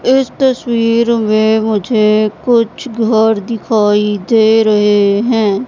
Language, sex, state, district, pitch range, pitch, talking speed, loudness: Hindi, female, Madhya Pradesh, Katni, 210-235 Hz, 220 Hz, 105 wpm, -12 LUFS